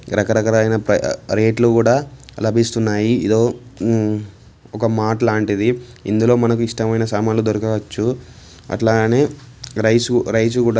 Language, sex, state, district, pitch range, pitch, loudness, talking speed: Telugu, male, Telangana, Karimnagar, 110-120 Hz, 110 Hz, -17 LUFS, 110 wpm